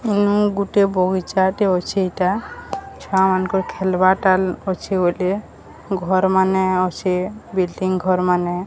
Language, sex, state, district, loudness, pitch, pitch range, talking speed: Odia, female, Odisha, Sambalpur, -19 LUFS, 190 Hz, 185-195 Hz, 85 wpm